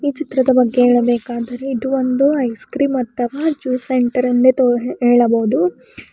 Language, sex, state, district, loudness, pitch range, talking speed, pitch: Kannada, female, Karnataka, Bidar, -16 LUFS, 240-265 Hz, 135 wpm, 250 Hz